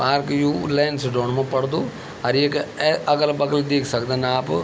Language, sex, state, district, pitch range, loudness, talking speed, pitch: Garhwali, male, Uttarakhand, Tehri Garhwal, 130-145 Hz, -21 LUFS, 165 wpm, 140 Hz